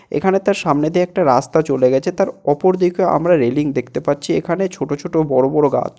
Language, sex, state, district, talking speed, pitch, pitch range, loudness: Bengali, male, West Bengal, Jalpaiguri, 210 wpm, 155 Hz, 140-180 Hz, -17 LUFS